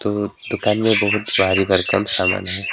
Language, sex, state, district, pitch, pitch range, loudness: Hindi, male, West Bengal, Alipurduar, 100 Hz, 95-105 Hz, -17 LUFS